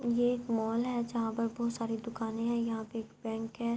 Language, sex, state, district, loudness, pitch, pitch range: Urdu, female, Andhra Pradesh, Anantapur, -34 LUFS, 230 Hz, 225-235 Hz